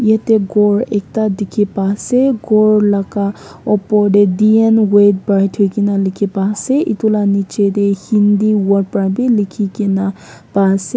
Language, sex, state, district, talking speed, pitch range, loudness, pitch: Nagamese, female, Nagaland, Kohima, 170 wpm, 200-215 Hz, -14 LUFS, 205 Hz